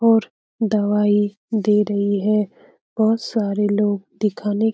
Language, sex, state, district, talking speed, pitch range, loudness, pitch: Hindi, female, Bihar, Lakhisarai, 125 wpm, 205-220 Hz, -20 LUFS, 210 Hz